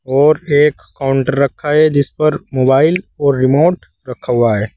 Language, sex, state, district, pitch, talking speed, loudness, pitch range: Hindi, male, Uttar Pradesh, Saharanpur, 140 Hz, 165 wpm, -14 LUFS, 130-155 Hz